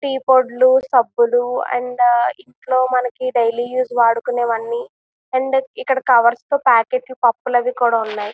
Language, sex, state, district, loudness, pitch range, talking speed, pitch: Telugu, female, Andhra Pradesh, Visakhapatnam, -17 LUFS, 240-255 Hz, 130 wpm, 245 Hz